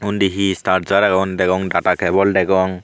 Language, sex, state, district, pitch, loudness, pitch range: Chakma, male, Tripura, Unakoti, 95 Hz, -16 LUFS, 95-100 Hz